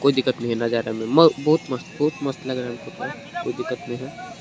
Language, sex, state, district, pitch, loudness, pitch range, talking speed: Hindi, male, Jharkhand, Garhwa, 130 Hz, -23 LUFS, 120-145 Hz, 175 wpm